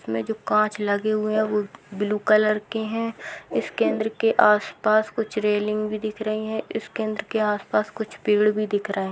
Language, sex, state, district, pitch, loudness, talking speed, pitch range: Hindi, female, Bihar, East Champaran, 215 Hz, -23 LUFS, 195 wpm, 210-220 Hz